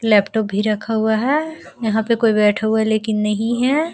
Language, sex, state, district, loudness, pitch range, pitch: Hindi, female, Bihar, Araria, -18 LUFS, 215-230 Hz, 220 Hz